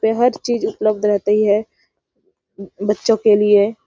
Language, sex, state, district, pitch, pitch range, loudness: Hindi, female, Chhattisgarh, Sarguja, 215 Hz, 205-225 Hz, -16 LUFS